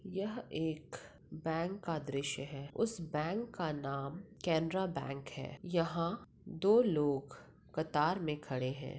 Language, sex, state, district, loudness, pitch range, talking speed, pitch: Hindi, female, Bihar, Madhepura, -37 LUFS, 140-185 Hz, 135 wpm, 160 Hz